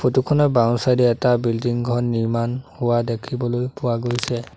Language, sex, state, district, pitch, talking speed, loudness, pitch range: Assamese, male, Assam, Sonitpur, 120 Hz, 145 wpm, -20 LUFS, 120-125 Hz